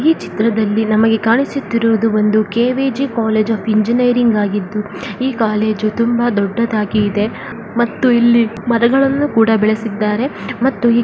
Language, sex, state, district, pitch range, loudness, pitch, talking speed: Kannada, female, Karnataka, Dakshina Kannada, 215-240 Hz, -15 LUFS, 225 Hz, 115 wpm